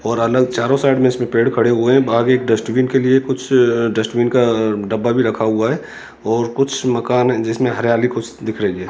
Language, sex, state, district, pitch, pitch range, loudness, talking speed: Hindi, male, Rajasthan, Jaipur, 120 Hz, 115-130 Hz, -16 LUFS, 220 wpm